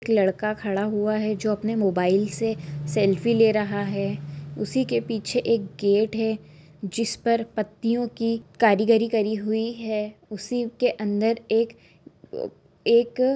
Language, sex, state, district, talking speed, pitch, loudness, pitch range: Hindi, female, Jharkhand, Jamtara, 150 wpm, 215 Hz, -24 LUFS, 205-230 Hz